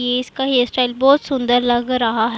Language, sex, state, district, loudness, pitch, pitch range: Hindi, female, Punjab, Pathankot, -17 LUFS, 250 Hz, 240-260 Hz